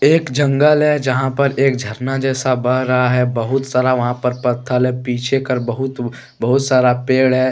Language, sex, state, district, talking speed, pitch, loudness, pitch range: Hindi, male, Jharkhand, Deoghar, 190 wpm, 130 Hz, -16 LUFS, 125-135 Hz